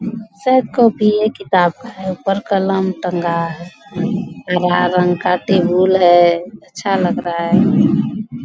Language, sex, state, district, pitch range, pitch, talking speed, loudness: Hindi, female, Bihar, Bhagalpur, 180-210 Hz, 190 Hz, 140 wpm, -15 LUFS